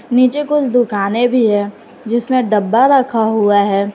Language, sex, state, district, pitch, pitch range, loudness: Hindi, female, Jharkhand, Garhwa, 235 Hz, 205-255 Hz, -14 LUFS